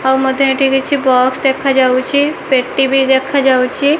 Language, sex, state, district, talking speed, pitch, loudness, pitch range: Odia, female, Odisha, Malkangiri, 150 wpm, 265 Hz, -13 LUFS, 260-275 Hz